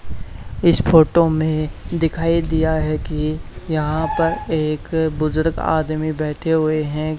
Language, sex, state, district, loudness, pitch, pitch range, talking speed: Hindi, male, Haryana, Charkhi Dadri, -19 LUFS, 155 Hz, 155-160 Hz, 125 wpm